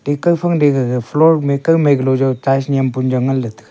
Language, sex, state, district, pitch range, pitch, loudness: Wancho, male, Arunachal Pradesh, Longding, 130-150 Hz, 135 Hz, -15 LUFS